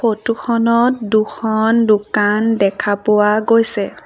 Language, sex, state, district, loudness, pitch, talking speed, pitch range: Assamese, female, Assam, Sonitpur, -15 LUFS, 220 Hz, 105 wpm, 210-230 Hz